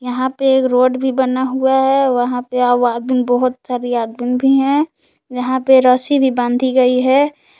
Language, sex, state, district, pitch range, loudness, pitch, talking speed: Hindi, female, Jharkhand, Palamu, 250-265 Hz, -15 LUFS, 255 Hz, 175 wpm